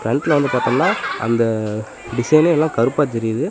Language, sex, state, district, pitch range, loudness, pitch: Tamil, male, Tamil Nadu, Namakkal, 115-145 Hz, -18 LUFS, 120 Hz